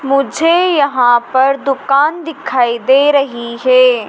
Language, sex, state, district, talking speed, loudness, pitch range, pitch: Hindi, female, Madhya Pradesh, Dhar, 120 wpm, -12 LUFS, 245-285 Hz, 275 Hz